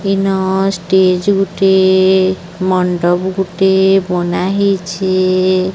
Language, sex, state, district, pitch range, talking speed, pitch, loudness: Odia, male, Odisha, Sambalpur, 185-195 Hz, 75 wpm, 190 Hz, -13 LUFS